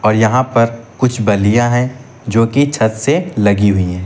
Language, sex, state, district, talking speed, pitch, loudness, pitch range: Hindi, male, Uttar Pradesh, Lucknow, 190 wpm, 115 Hz, -14 LUFS, 105-125 Hz